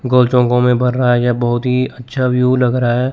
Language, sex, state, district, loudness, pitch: Hindi, male, Chandigarh, Chandigarh, -14 LUFS, 125 Hz